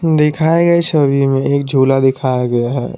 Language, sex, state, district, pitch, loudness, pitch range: Hindi, male, Jharkhand, Garhwa, 140 Hz, -13 LUFS, 135-155 Hz